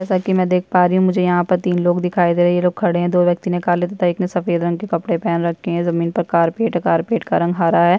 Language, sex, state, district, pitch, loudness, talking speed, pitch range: Hindi, female, Chhattisgarh, Bastar, 175 Hz, -17 LUFS, 315 wpm, 170-180 Hz